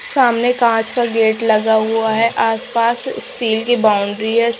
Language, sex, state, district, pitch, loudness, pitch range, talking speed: Hindi, female, Punjab, Pathankot, 225 Hz, -16 LUFS, 220-235 Hz, 170 wpm